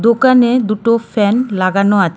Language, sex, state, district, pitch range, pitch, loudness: Bengali, female, West Bengal, Cooch Behar, 200-240 Hz, 225 Hz, -13 LUFS